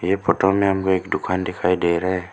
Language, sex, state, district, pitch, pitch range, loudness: Hindi, male, Arunachal Pradesh, Lower Dibang Valley, 90 Hz, 90-95 Hz, -20 LUFS